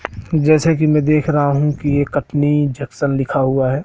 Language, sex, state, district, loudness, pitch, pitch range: Hindi, male, Madhya Pradesh, Katni, -16 LUFS, 145 Hz, 140-150 Hz